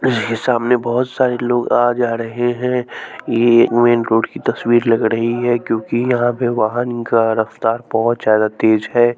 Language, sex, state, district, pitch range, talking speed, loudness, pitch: Hindi, male, Bihar, West Champaran, 115-120 Hz, 175 wpm, -16 LUFS, 120 Hz